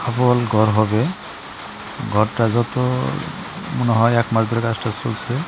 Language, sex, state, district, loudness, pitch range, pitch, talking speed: Bengali, male, West Bengal, Jalpaiguri, -19 LUFS, 115-125 Hz, 115 Hz, 130 wpm